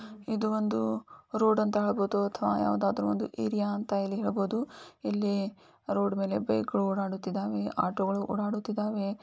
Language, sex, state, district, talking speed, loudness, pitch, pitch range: Kannada, female, Karnataka, Dharwad, 115 wpm, -30 LUFS, 200 Hz, 185-210 Hz